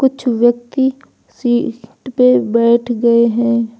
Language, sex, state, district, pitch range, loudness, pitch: Hindi, female, Uttar Pradesh, Lucknow, 235-255 Hz, -14 LUFS, 240 Hz